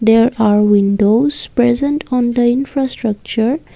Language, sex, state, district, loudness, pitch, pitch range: English, female, Assam, Kamrup Metropolitan, -14 LUFS, 240 Hz, 220-260 Hz